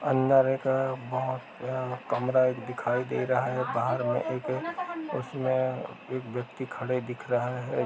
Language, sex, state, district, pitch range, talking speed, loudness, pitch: Hindi, male, Bihar, Gaya, 125-130 Hz, 150 wpm, -29 LUFS, 130 Hz